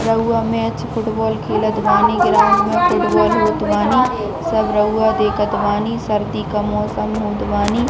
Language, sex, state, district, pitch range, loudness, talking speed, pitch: Hindi, female, Chhattisgarh, Bilaspur, 210-225 Hz, -17 LUFS, 145 wpm, 220 Hz